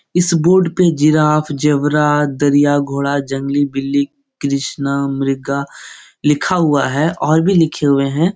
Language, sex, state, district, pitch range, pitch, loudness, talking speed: Hindi, male, Bihar, Jahanabad, 140-160 Hz, 145 Hz, -15 LUFS, 135 wpm